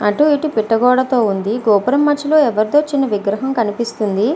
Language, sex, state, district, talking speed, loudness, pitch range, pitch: Telugu, female, Andhra Pradesh, Visakhapatnam, 150 wpm, -15 LUFS, 210-285 Hz, 235 Hz